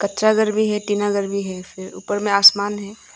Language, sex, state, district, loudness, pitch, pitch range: Hindi, female, Arunachal Pradesh, Longding, -17 LUFS, 205 Hz, 200-210 Hz